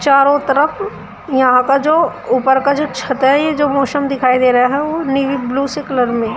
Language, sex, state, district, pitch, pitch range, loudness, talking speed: Hindi, female, Uttar Pradesh, Shamli, 275 Hz, 255-290 Hz, -14 LUFS, 200 wpm